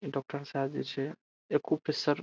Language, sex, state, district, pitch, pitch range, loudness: Maithili, male, Bihar, Saharsa, 140 Hz, 140-150 Hz, -34 LUFS